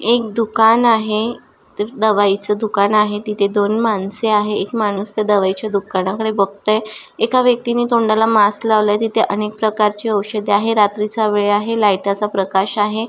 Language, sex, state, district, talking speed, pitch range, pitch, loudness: Marathi, female, Maharashtra, Nagpur, 160 wpm, 205-225 Hz, 210 Hz, -16 LUFS